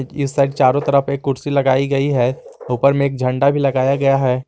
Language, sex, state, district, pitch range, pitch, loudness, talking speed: Hindi, male, Jharkhand, Garhwa, 130-140 Hz, 135 Hz, -17 LUFS, 230 wpm